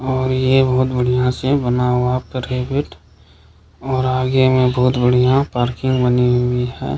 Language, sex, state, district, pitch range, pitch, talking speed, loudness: Hindi, male, Bihar, Kishanganj, 125-130 Hz, 125 Hz, 145 wpm, -17 LUFS